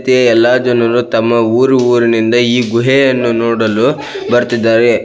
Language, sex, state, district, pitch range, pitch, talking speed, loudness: Kannada, male, Karnataka, Belgaum, 115-125 Hz, 120 Hz, 105 wpm, -11 LUFS